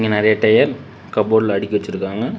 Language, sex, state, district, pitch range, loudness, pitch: Tamil, male, Tamil Nadu, Namakkal, 105-110 Hz, -17 LUFS, 105 Hz